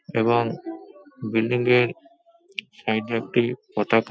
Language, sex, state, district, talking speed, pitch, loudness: Bengali, male, West Bengal, Paschim Medinipur, 100 wpm, 120 Hz, -23 LUFS